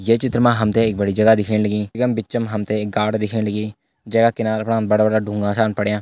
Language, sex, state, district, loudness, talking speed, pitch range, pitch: Hindi, male, Uttarakhand, Uttarkashi, -19 LUFS, 230 wpm, 105-115 Hz, 110 Hz